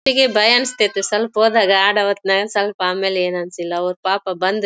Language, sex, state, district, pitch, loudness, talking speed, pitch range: Kannada, female, Karnataka, Bellary, 195 Hz, -17 LUFS, 165 wpm, 185-210 Hz